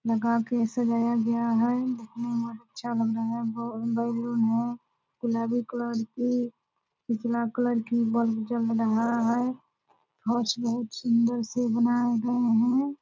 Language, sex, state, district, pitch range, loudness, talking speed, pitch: Hindi, female, Bihar, Purnia, 230-240 Hz, -27 LUFS, 115 wpm, 235 Hz